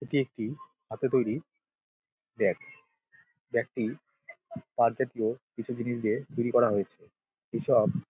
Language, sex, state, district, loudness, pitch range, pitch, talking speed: Bengali, male, West Bengal, Dakshin Dinajpur, -30 LUFS, 115-145 Hz, 120 Hz, 140 wpm